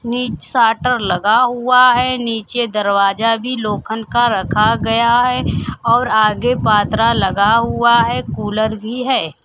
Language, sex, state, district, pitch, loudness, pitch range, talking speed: Hindi, female, Bihar, Kaimur, 230 Hz, -15 LUFS, 215-245 Hz, 140 wpm